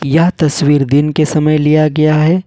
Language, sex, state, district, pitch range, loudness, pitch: Hindi, male, Jharkhand, Ranchi, 145-155 Hz, -12 LUFS, 155 Hz